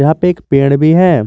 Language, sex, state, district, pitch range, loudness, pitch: Hindi, male, Jharkhand, Garhwa, 140-175 Hz, -11 LUFS, 155 Hz